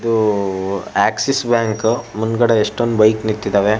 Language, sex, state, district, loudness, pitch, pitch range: Kannada, male, Karnataka, Shimoga, -17 LUFS, 110 Hz, 105-115 Hz